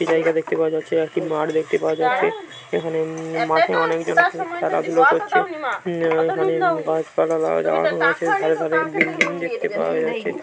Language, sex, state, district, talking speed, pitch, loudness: Bengali, male, West Bengal, Jhargram, 175 wpm, 165 Hz, -20 LUFS